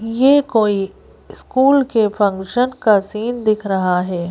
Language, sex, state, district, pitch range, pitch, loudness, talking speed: Hindi, female, Madhya Pradesh, Bhopal, 195-245 Hz, 215 Hz, -16 LUFS, 140 wpm